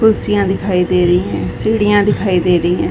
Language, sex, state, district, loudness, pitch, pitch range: Hindi, female, Uttar Pradesh, Varanasi, -14 LUFS, 190 Hz, 180-205 Hz